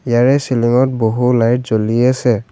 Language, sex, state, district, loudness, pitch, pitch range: Assamese, male, Assam, Kamrup Metropolitan, -14 LUFS, 120 Hz, 115-125 Hz